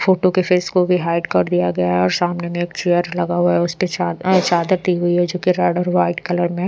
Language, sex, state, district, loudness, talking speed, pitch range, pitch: Hindi, female, Odisha, Sambalpur, -18 LUFS, 285 wpm, 175-180 Hz, 175 Hz